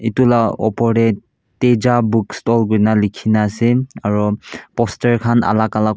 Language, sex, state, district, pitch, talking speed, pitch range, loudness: Nagamese, male, Nagaland, Kohima, 115 Hz, 140 wpm, 110-120 Hz, -16 LUFS